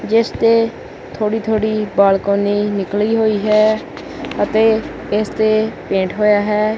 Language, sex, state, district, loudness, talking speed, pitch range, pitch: Punjabi, male, Punjab, Kapurthala, -16 LUFS, 125 wpm, 205-220 Hz, 215 Hz